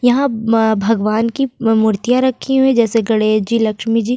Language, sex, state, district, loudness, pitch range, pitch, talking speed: Hindi, female, Uttar Pradesh, Jyotiba Phule Nagar, -15 LUFS, 220-245 Hz, 225 Hz, 175 wpm